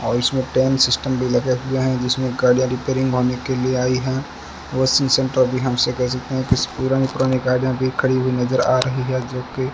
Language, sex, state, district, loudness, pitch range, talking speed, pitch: Hindi, male, Rajasthan, Bikaner, -19 LUFS, 125-130 Hz, 230 wpm, 130 Hz